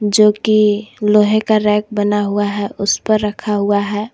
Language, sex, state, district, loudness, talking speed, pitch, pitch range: Hindi, female, Jharkhand, Garhwa, -15 LUFS, 190 wpm, 210 Hz, 205-215 Hz